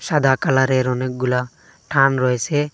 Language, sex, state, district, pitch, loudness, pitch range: Bengali, male, Assam, Hailakandi, 130 Hz, -18 LUFS, 125-135 Hz